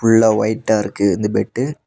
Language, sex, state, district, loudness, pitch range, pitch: Tamil, male, Tamil Nadu, Nilgiris, -17 LUFS, 105-115 Hz, 110 Hz